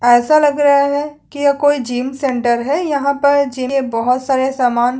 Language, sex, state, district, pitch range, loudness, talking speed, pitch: Hindi, female, Chhattisgarh, Sukma, 250-285 Hz, -15 LUFS, 190 wpm, 275 Hz